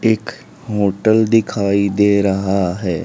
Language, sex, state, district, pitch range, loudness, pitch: Hindi, male, Haryana, Rohtak, 100-110 Hz, -16 LUFS, 100 Hz